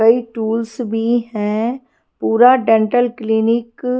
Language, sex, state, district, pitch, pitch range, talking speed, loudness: Hindi, female, Punjab, Kapurthala, 230 Hz, 220-245 Hz, 120 wpm, -16 LUFS